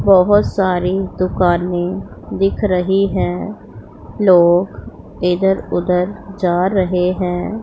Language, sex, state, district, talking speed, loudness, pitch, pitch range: Hindi, female, Punjab, Pathankot, 95 wpm, -16 LUFS, 185 Hz, 180-195 Hz